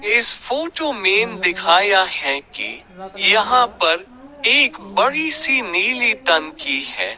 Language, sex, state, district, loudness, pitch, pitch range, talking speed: Hindi, male, Haryana, Charkhi Dadri, -16 LUFS, 235 Hz, 190-285 Hz, 115 wpm